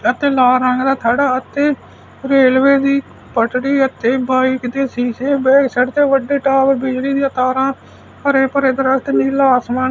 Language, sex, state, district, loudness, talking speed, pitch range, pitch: Punjabi, male, Punjab, Fazilka, -15 LUFS, 150 wpm, 255-275 Hz, 265 Hz